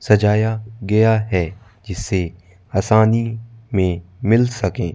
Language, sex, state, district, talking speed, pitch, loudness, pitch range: Hindi, male, Madhya Pradesh, Bhopal, 95 wpm, 105 Hz, -19 LUFS, 95-110 Hz